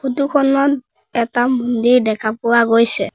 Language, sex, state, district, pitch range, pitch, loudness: Assamese, female, Assam, Sonitpur, 230-265 Hz, 240 Hz, -15 LUFS